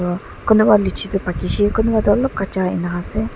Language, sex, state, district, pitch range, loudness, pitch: Nagamese, female, Nagaland, Dimapur, 180-215 Hz, -18 LUFS, 195 Hz